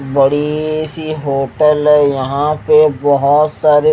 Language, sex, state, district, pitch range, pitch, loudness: Hindi, male, Haryana, Jhajjar, 140-155 Hz, 150 Hz, -13 LUFS